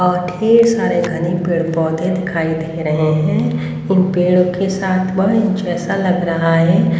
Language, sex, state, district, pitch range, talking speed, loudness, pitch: Hindi, female, Haryana, Rohtak, 165-190 Hz, 170 wpm, -16 LUFS, 180 Hz